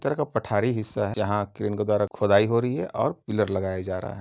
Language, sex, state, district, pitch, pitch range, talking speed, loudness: Hindi, male, Uttar Pradesh, Jalaun, 105 Hz, 100-115 Hz, 255 wpm, -25 LUFS